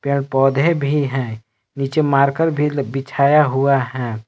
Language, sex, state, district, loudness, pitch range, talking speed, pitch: Hindi, male, Jharkhand, Palamu, -17 LUFS, 135-145 Hz, 140 wpm, 140 Hz